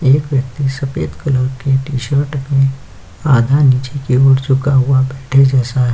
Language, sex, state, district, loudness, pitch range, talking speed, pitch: Hindi, male, Uttar Pradesh, Jyotiba Phule Nagar, -14 LUFS, 130-140 Hz, 160 wpm, 135 Hz